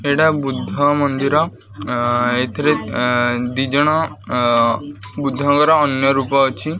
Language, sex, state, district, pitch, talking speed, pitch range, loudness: Odia, male, Odisha, Khordha, 135 Hz, 95 wpm, 120-145 Hz, -17 LUFS